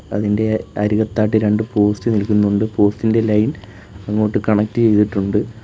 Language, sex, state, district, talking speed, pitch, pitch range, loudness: Malayalam, male, Kerala, Kollam, 115 wpm, 105 Hz, 105-110 Hz, -17 LUFS